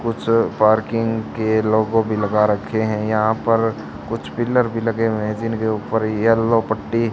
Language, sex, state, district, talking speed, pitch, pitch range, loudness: Hindi, male, Haryana, Charkhi Dadri, 160 wpm, 110 Hz, 110-115 Hz, -19 LUFS